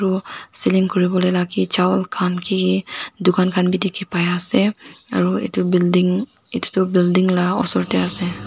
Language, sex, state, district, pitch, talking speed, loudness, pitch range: Nagamese, female, Nagaland, Dimapur, 185 Hz, 175 wpm, -19 LUFS, 180-190 Hz